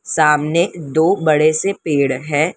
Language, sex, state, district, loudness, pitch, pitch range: Hindi, female, Maharashtra, Mumbai Suburban, -16 LUFS, 155 Hz, 150-170 Hz